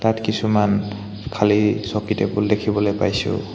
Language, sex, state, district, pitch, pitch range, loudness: Assamese, male, Assam, Hailakandi, 105 Hz, 105-110 Hz, -20 LUFS